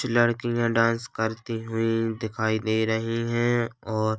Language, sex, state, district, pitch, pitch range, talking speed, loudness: Hindi, male, Chhattisgarh, Korba, 115 Hz, 110-115 Hz, 145 wpm, -25 LUFS